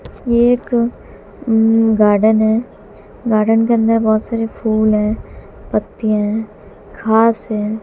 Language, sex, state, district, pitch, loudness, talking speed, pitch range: Hindi, female, Haryana, Jhajjar, 220 Hz, -15 LUFS, 115 wpm, 215-230 Hz